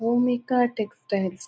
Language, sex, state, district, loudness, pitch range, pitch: Kannada, female, Karnataka, Dakshina Kannada, -25 LUFS, 200-245 Hz, 235 Hz